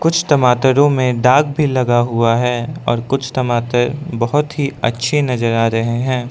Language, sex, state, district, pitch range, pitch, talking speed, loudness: Hindi, male, Arunachal Pradesh, Lower Dibang Valley, 120-145 Hz, 125 Hz, 170 wpm, -15 LUFS